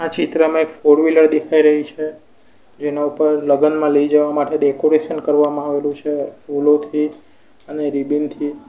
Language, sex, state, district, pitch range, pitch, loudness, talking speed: Gujarati, male, Gujarat, Valsad, 145-155 Hz, 150 Hz, -17 LUFS, 145 wpm